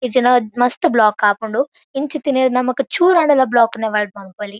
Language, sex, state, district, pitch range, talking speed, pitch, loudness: Tulu, female, Karnataka, Dakshina Kannada, 215-275 Hz, 145 wpm, 250 Hz, -16 LUFS